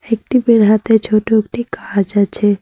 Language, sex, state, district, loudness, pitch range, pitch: Bengali, female, West Bengal, Cooch Behar, -14 LUFS, 205-230 Hz, 220 Hz